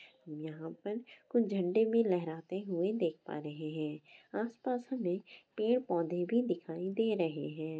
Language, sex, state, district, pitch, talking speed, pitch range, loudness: Hindi, female, Bihar, Bhagalpur, 180 Hz, 155 wpm, 160-225 Hz, -35 LUFS